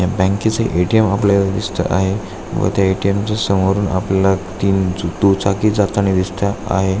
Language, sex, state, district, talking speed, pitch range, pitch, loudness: Marathi, male, Maharashtra, Aurangabad, 155 wpm, 95-100 Hz, 95 Hz, -17 LUFS